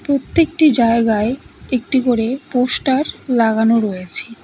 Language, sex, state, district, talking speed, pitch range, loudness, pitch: Bengali, female, West Bengal, Cooch Behar, 95 wpm, 230-270 Hz, -16 LUFS, 245 Hz